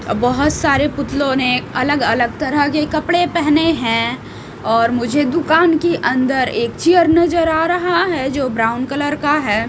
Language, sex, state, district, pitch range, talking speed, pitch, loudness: Hindi, female, Odisha, Malkangiri, 250-325 Hz, 165 wpm, 290 Hz, -16 LUFS